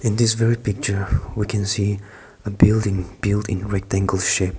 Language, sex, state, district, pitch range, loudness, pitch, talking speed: English, male, Nagaland, Kohima, 95-110 Hz, -21 LUFS, 100 Hz, 155 wpm